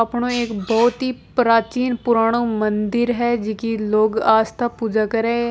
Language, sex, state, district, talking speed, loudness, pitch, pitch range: Hindi, female, Rajasthan, Nagaur, 150 wpm, -19 LUFS, 230 Hz, 220-240 Hz